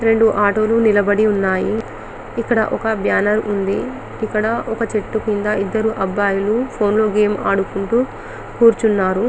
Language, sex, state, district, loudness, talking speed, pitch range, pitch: Telugu, female, Telangana, Karimnagar, -17 LUFS, 125 wpm, 205-225 Hz, 215 Hz